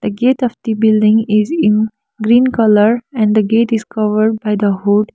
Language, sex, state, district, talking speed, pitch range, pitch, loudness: English, female, Sikkim, Gangtok, 185 wpm, 210-230 Hz, 220 Hz, -13 LUFS